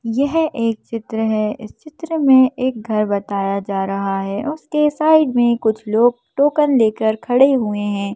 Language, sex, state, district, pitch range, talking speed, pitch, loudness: Hindi, female, Madhya Pradesh, Bhopal, 210-280 Hz, 170 wpm, 230 Hz, -17 LUFS